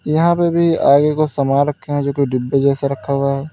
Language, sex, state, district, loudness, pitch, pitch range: Hindi, male, Uttar Pradesh, Lalitpur, -16 LUFS, 140 Hz, 140-155 Hz